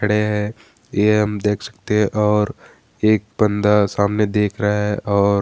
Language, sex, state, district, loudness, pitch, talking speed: Hindi, male, Bihar, Gaya, -18 LUFS, 105 Hz, 175 wpm